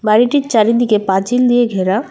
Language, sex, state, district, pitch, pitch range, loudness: Bengali, female, West Bengal, Alipurduar, 225 Hz, 210-245 Hz, -13 LUFS